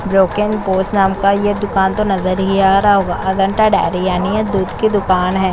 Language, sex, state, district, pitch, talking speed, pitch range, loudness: Hindi, female, Chhattisgarh, Korba, 195 Hz, 215 wpm, 190-205 Hz, -15 LUFS